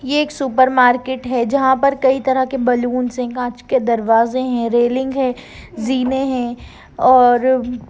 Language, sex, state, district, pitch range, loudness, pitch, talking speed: Hindi, female, Bihar, Gaya, 245-265 Hz, -16 LUFS, 255 Hz, 160 wpm